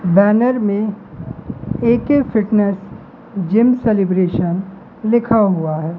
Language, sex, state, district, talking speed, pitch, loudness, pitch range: Hindi, male, Madhya Pradesh, Katni, 90 wpm, 205 Hz, -16 LUFS, 185-230 Hz